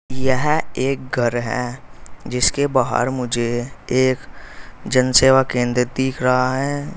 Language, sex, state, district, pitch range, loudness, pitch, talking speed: Hindi, male, Uttar Pradesh, Saharanpur, 125-130 Hz, -19 LUFS, 130 Hz, 120 wpm